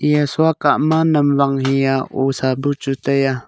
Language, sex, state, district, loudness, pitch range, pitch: Wancho, male, Arunachal Pradesh, Longding, -17 LUFS, 135-150 Hz, 140 Hz